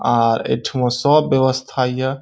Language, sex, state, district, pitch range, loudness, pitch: Maithili, male, Bihar, Saharsa, 125-135 Hz, -17 LUFS, 130 Hz